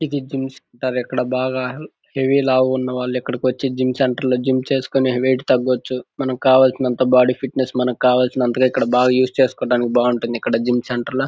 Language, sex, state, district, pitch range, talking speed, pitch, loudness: Telugu, male, Andhra Pradesh, Guntur, 125-130 Hz, 180 wpm, 130 Hz, -18 LUFS